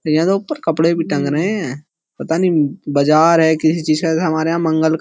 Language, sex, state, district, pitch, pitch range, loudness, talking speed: Hindi, male, Uttar Pradesh, Jyotiba Phule Nagar, 160 Hz, 155-170 Hz, -16 LUFS, 225 wpm